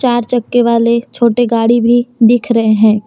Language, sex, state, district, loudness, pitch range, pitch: Hindi, female, Jharkhand, Deoghar, -11 LUFS, 230-240 Hz, 235 Hz